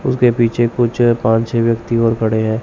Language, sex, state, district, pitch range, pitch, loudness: Hindi, male, Chandigarh, Chandigarh, 115-120 Hz, 115 Hz, -15 LUFS